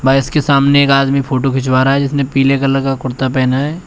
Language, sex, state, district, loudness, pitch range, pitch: Hindi, male, Uttar Pradesh, Shamli, -13 LUFS, 130-140 Hz, 135 Hz